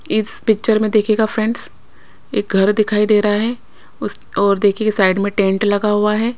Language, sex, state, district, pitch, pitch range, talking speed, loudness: Hindi, female, Maharashtra, Washim, 210 Hz, 205-215 Hz, 190 wpm, -16 LUFS